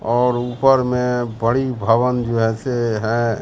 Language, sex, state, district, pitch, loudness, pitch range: Hindi, male, Bihar, Katihar, 120 Hz, -18 LUFS, 115-125 Hz